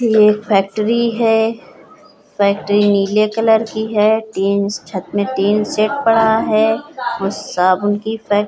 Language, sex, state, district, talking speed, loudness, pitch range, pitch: Hindi, female, Uttar Pradesh, Hamirpur, 140 wpm, -15 LUFS, 200-225 Hz, 215 Hz